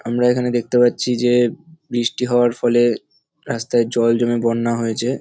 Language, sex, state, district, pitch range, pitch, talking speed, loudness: Bengali, male, West Bengal, North 24 Parganas, 115-125 Hz, 120 Hz, 150 wpm, -18 LUFS